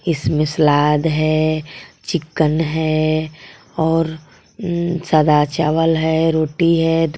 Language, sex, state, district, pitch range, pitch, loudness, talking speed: Hindi, female, Jharkhand, Garhwa, 155-165 Hz, 160 Hz, -17 LUFS, 100 wpm